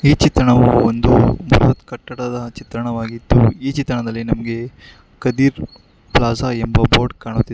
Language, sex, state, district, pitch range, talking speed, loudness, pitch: Kannada, male, Karnataka, Bangalore, 115-125 Hz, 110 wpm, -16 LUFS, 120 Hz